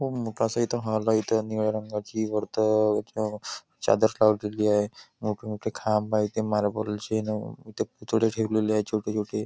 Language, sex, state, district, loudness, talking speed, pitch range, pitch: Marathi, male, Maharashtra, Nagpur, -27 LUFS, 165 wpm, 105-110 Hz, 110 Hz